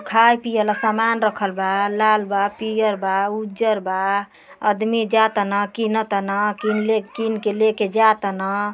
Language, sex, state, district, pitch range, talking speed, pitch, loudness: Bhojpuri, female, Uttar Pradesh, Ghazipur, 200-220 Hz, 160 wpm, 210 Hz, -20 LUFS